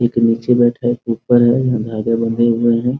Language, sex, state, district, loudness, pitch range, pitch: Hindi, male, Bihar, Muzaffarpur, -15 LUFS, 115-120 Hz, 120 Hz